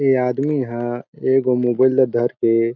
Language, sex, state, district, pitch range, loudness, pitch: Chhattisgarhi, male, Chhattisgarh, Jashpur, 120-130 Hz, -19 LUFS, 125 Hz